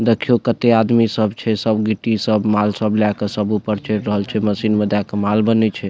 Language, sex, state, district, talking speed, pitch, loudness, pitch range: Maithili, male, Bihar, Supaul, 245 wpm, 110 Hz, -17 LUFS, 105-110 Hz